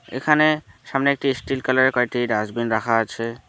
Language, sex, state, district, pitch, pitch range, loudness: Bengali, male, West Bengal, Alipurduar, 125 Hz, 115-135 Hz, -21 LUFS